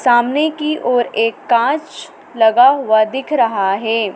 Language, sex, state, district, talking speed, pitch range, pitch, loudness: Hindi, female, Madhya Pradesh, Dhar, 145 wpm, 225-300 Hz, 240 Hz, -15 LUFS